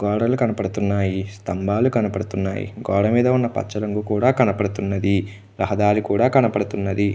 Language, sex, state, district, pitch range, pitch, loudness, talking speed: Telugu, male, Andhra Pradesh, Krishna, 100-115 Hz, 100 Hz, -21 LUFS, 145 wpm